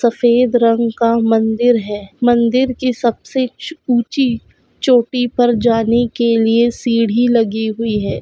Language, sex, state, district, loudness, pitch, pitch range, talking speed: Hindi, female, Goa, North and South Goa, -15 LUFS, 235 Hz, 230-245 Hz, 140 wpm